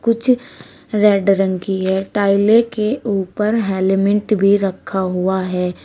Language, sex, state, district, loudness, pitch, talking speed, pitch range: Hindi, female, Uttar Pradesh, Shamli, -17 LUFS, 200 Hz, 135 wpm, 190-215 Hz